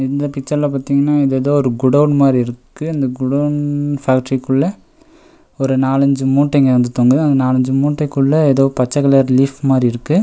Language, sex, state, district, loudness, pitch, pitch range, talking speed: Tamil, male, Tamil Nadu, Nilgiris, -15 LUFS, 135 Hz, 130-145 Hz, 165 wpm